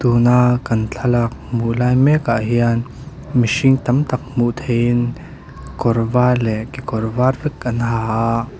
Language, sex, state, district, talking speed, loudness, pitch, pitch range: Mizo, male, Mizoram, Aizawl, 160 wpm, -17 LUFS, 120 Hz, 115-130 Hz